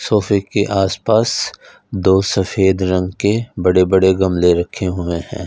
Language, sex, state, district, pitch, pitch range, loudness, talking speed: Hindi, male, Punjab, Fazilka, 95 Hz, 90-100 Hz, -16 LUFS, 155 wpm